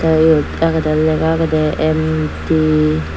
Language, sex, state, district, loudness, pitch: Chakma, female, Tripura, Dhalai, -15 LUFS, 155 Hz